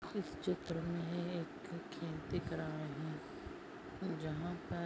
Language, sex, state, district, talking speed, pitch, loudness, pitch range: Hindi, female, Maharashtra, Aurangabad, 135 wpm, 170 Hz, -43 LUFS, 160-190 Hz